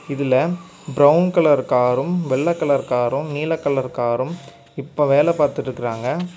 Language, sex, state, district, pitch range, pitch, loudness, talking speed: Tamil, male, Tamil Nadu, Kanyakumari, 130-165 Hz, 145 Hz, -19 LUFS, 120 wpm